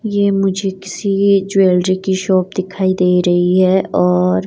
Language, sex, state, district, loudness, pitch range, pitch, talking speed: Hindi, female, Himachal Pradesh, Shimla, -14 LUFS, 180-195 Hz, 190 Hz, 145 wpm